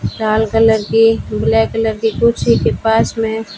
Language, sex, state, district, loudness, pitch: Hindi, female, Rajasthan, Bikaner, -14 LUFS, 220 Hz